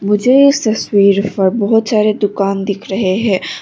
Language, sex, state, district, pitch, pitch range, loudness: Hindi, female, Arunachal Pradesh, Longding, 205 Hz, 195-220 Hz, -13 LUFS